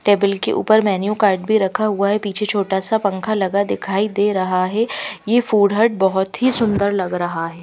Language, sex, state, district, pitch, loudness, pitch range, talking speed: Hindi, female, Haryana, Rohtak, 200 Hz, -18 LUFS, 190-215 Hz, 210 wpm